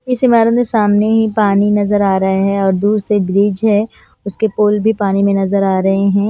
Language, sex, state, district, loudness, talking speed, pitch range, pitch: Hindi, female, Punjab, Kapurthala, -13 LUFS, 230 wpm, 195-215 Hz, 205 Hz